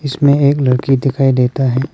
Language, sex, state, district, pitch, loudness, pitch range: Hindi, male, Arunachal Pradesh, Papum Pare, 135 Hz, -13 LUFS, 130-140 Hz